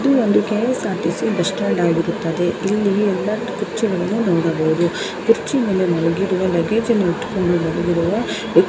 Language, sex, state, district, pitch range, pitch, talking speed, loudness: Kannada, female, Karnataka, Belgaum, 170-215 Hz, 185 Hz, 110 wpm, -19 LUFS